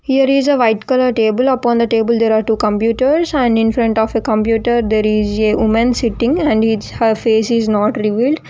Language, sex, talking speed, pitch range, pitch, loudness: English, female, 210 wpm, 220-250 Hz, 230 Hz, -14 LUFS